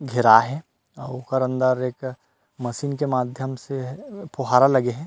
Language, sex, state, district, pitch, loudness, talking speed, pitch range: Chhattisgarhi, male, Chhattisgarh, Rajnandgaon, 130 Hz, -21 LUFS, 155 wpm, 125-140 Hz